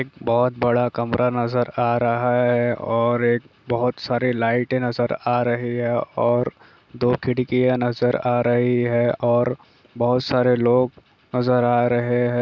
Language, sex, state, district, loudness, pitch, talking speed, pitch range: Hindi, male, Bihar, Jahanabad, -21 LUFS, 120 Hz, 160 wpm, 120-125 Hz